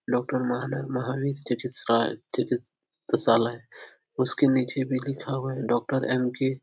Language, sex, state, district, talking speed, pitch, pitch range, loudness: Hindi, male, Uttar Pradesh, Etah, 145 wpm, 130 Hz, 125-135 Hz, -27 LUFS